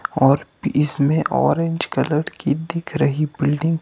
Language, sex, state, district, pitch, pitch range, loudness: Hindi, male, Himachal Pradesh, Shimla, 150 Hz, 145-165 Hz, -20 LUFS